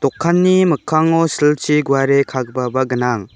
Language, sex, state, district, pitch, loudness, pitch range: Garo, male, Meghalaya, West Garo Hills, 145 Hz, -15 LUFS, 130-165 Hz